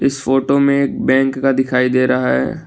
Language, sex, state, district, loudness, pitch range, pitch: Hindi, male, Assam, Kamrup Metropolitan, -15 LUFS, 130-135 Hz, 135 Hz